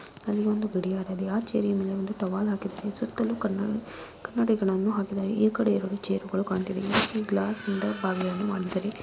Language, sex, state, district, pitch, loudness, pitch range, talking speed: Kannada, female, Karnataka, Mysore, 200 Hz, -28 LUFS, 195-215 Hz, 155 wpm